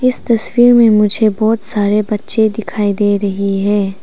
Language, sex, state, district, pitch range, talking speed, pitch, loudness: Hindi, female, Arunachal Pradesh, Papum Pare, 205-225 Hz, 165 wpm, 210 Hz, -13 LUFS